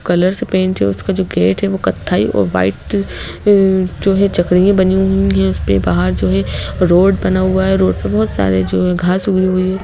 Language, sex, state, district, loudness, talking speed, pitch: Hindi, female, Madhya Pradesh, Bhopal, -14 LUFS, 225 wpm, 175 Hz